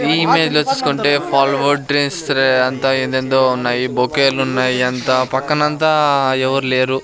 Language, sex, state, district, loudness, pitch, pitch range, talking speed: Telugu, male, Andhra Pradesh, Sri Satya Sai, -15 LUFS, 135 Hz, 130-145 Hz, 130 wpm